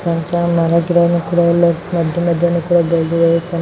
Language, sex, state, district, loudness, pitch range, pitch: Kannada, female, Karnataka, Bellary, -15 LUFS, 170-175 Hz, 170 Hz